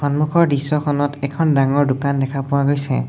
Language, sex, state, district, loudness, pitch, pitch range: Assamese, male, Assam, Sonitpur, -18 LUFS, 140 Hz, 140-145 Hz